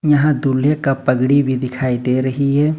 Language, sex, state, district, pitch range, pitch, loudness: Hindi, male, Jharkhand, Ranchi, 130-145 Hz, 135 Hz, -16 LUFS